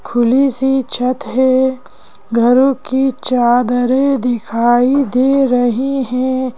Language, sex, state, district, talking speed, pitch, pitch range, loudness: Hindi, female, Madhya Pradesh, Bhopal, 100 wpm, 255 Hz, 245-265 Hz, -14 LUFS